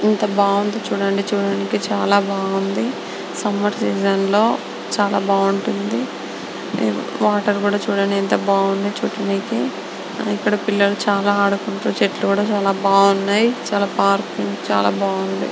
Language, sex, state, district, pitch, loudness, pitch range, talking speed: Telugu, female, Andhra Pradesh, Anantapur, 200 Hz, -19 LUFS, 195-205 Hz, 100 wpm